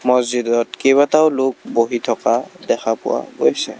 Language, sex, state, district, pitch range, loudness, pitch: Assamese, male, Assam, Kamrup Metropolitan, 115-135 Hz, -17 LUFS, 120 Hz